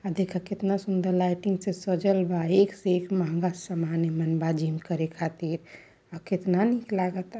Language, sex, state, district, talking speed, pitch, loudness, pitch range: Awadhi, female, Uttar Pradesh, Varanasi, 180 wpm, 180 Hz, -27 LUFS, 165-195 Hz